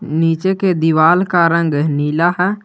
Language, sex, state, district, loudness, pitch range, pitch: Hindi, male, Jharkhand, Garhwa, -14 LUFS, 160-180 Hz, 170 Hz